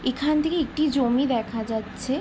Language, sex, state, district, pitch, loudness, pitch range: Bengali, female, West Bengal, Jalpaiguri, 270 Hz, -24 LUFS, 240-300 Hz